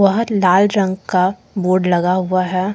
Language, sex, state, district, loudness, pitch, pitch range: Hindi, female, Jharkhand, Deoghar, -16 LUFS, 185 Hz, 185-195 Hz